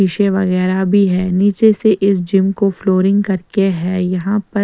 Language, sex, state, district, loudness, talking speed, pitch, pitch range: Hindi, female, Bihar, West Champaran, -15 LUFS, 180 wpm, 195 Hz, 185-200 Hz